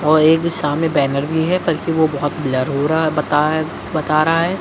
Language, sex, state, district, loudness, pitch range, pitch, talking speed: Hindi, male, Bihar, Jahanabad, -17 LUFS, 145-165 Hz, 155 Hz, 235 wpm